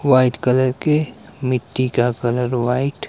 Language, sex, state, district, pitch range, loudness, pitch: Hindi, male, Himachal Pradesh, Shimla, 125-130 Hz, -19 LUFS, 130 Hz